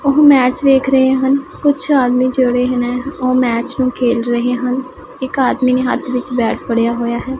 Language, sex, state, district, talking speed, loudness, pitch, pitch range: Punjabi, female, Punjab, Pathankot, 195 wpm, -14 LUFS, 255 Hz, 245-265 Hz